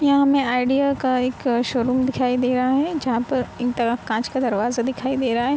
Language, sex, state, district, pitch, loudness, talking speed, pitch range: Hindi, female, Bihar, Gopalganj, 255 Hz, -21 LUFS, 235 wpm, 245-270 Hz